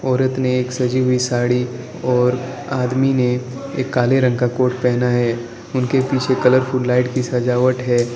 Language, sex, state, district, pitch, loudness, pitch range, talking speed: Hindi, male, Arunachal Pradesh, Lower Dibang Valley, 125 Hz, -18 LUFS, 125-130 Hz, 170 wpm